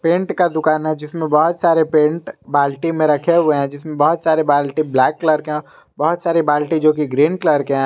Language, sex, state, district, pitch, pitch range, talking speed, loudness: Hindi, male, Jharkhand, Garhwa, 155 Hz, 150-165 Hz, 220 wpm, -16 LUFS